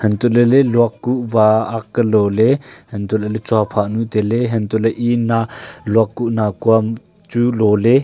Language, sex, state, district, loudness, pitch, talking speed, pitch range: Wancho, male, Arunachal Pradesh, Longding, -16 LUFS, 115 Hz, 170 wpm, 110-120 Hz